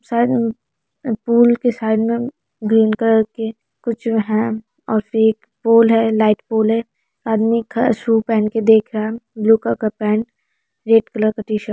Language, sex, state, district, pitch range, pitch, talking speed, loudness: Hindi, female, Bihar, Araria, 220-230 Hz, 225 Hz, 175 wpm, -17 LUFS